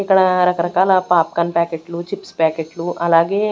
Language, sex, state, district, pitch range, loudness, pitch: Telugu, female, Andhra Pradesh, Sri Satya Sai, 170-185 Hz, -17 LUFS, 170 Hz